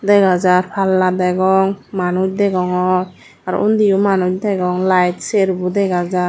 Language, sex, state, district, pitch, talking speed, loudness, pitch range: Chakma, female, Tripura, Dhalai, 185 Hz, 135 wpm, -16 LUFS, 180-195 Hz